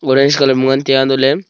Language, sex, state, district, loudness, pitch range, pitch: Wancho, male, Arunachal Pradesh, Longding, -12 LUFS, 135-140 Hz, 135 Hz